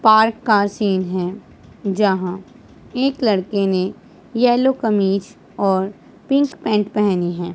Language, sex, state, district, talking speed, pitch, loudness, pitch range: Hindi, male, Punjab, Pathankot, 120 wpm, 205 Hz, -19 LUFS, 190-225 Hz